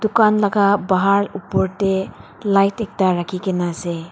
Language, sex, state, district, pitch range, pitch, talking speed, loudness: Nagamese, female, Nagaland, Dimapur, 185-205 Hz, 195 Hz, 145 wpm, -18 LUFS